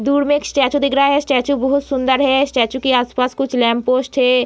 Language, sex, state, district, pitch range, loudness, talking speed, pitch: Hindi, female, Bihar, Gaya, 250-280 Hz, -16 LUFS, 240 wpm, 265 Hz